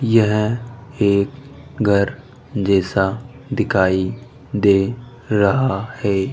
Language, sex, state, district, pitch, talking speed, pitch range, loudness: Hindi, male, Rajasthan, Jaipur, 110 Hz, 75 wpm, 100-125 Hz, -19 LUFS